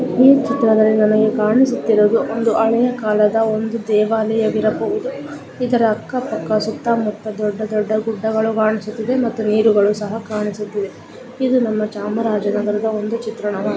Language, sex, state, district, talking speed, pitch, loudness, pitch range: Kannada, female, Karnataka, Chamarajanagar, 125 wpm, 220 Hz, -17 LUFS, 215-230 Hz